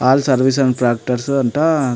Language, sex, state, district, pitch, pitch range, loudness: Telugu, male, Andhra Pradesh, Anantapur, 130 Hz, 125-140 Hz, -16 LUFS